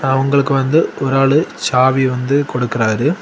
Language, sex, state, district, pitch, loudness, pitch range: Tamil, male, Tamil Nadu, Kanyakumari, 135 Hz, -15 LUFS, 130-140 Hz